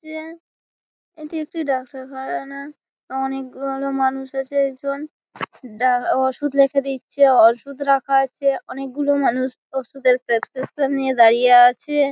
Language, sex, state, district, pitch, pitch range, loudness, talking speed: Bengali, female, West Bengal, Malda, 270 Hz, 260-280 Hz, -19 LUFS, 105 wpm